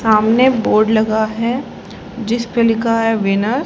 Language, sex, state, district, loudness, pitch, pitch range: Hindi, female, Haryana, Rohtak, -15 LUFS, 225 Hz, 220-235 Hz